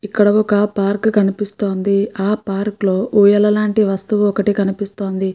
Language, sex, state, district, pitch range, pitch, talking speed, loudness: Telugu, female, Andhra Pradesh, Guntur, 195-210 Hz, 205 Hz, 135 wpm, -16 LUFS